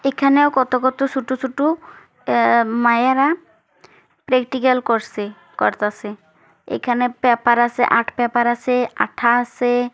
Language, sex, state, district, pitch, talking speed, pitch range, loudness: Bengali, female, West Bengal, Kolkata, 245 Hz, 110 wpm, 235-265 Hz, -18 LUFS